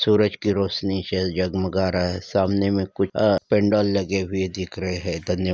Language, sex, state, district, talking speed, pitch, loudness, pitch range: Hindi, female, Maharashtra, Nagpur, 175 wpm, 95 Hz, -22 LUFS, 95-100 Hz